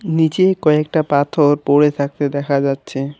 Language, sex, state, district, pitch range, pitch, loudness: Bengali, male, West Bengal, Alipurduar, 140-155 Hz, 145 Hz, -16 LUFS